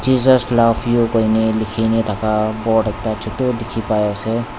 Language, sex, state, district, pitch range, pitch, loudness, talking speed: Nagamese, male, Nagaland, Dimapur, 110-120 Hz, 110 Hz, -17 LUFS, 170 wpm